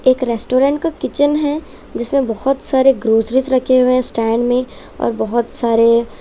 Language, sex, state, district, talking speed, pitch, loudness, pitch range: Hindi, female, Chhattisgarh, Raipur, 155 wpm, 255 Hz, -15 LUFS, 235-270 Hz